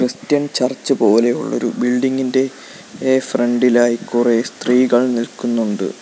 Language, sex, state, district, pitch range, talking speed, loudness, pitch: Malayalam, male, Kerala, Kollam, 120-130 Hz, 110 wpm, -17 LUFS, 125 Hz